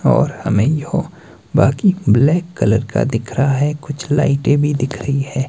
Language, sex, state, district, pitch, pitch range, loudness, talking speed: Hindi, male, Himachal Pradesh, Shimla, 140 Hz, 125-150 Hz, -16 LUFS, 175 wpm